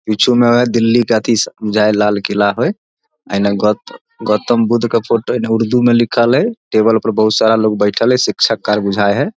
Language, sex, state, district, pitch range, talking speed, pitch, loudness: Maithili, male, Bihar, Samastipur, 105-120 Hz, 200 wpm, 115 Hz, -13 LUFS